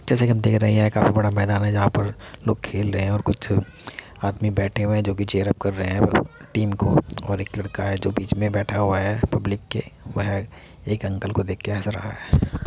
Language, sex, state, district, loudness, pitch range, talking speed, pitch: Hindi, male, Uttar Pradesh, Muzaffarnagar, -23 LUFS, 100-105 Hz, 240 wpm, 100 Hz